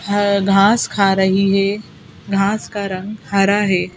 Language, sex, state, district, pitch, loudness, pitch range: Hindi, female, Madhya Pradesh, Bhopal, 195 Hz, -16 LUFS, 195-205 Hz